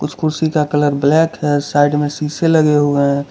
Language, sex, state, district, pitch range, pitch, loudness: Hindi, male, Gujarat, Valsad, 145-155 Hz, 150 Hz, -15 LUFS